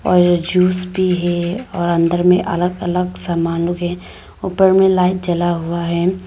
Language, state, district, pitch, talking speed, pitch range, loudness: Hindi, Arunachal Pradesh, Lower Dibang Valley, 180 Hz, 170 wpm, 175-185 Hz, -16 LUFS